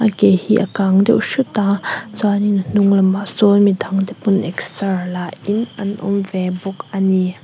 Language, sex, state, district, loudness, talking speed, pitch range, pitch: Mizo, female, Mizoram, Aizawl, -17 LUFS, 185 wpm, 190-205 Hz, 200 Hz